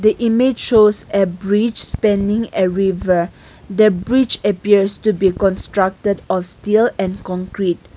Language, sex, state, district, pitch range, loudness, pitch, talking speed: English, female, Nagaland, Kohima, 190-215 Hz, -16 LUFS, 200 Hz, 130 wpm